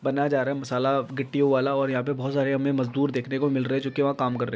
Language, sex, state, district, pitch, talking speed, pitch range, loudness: Hindi, male, Bihar, Lakhisarai, 135 Hz, 330 wpm, 130-140 Hz, -25 LUFS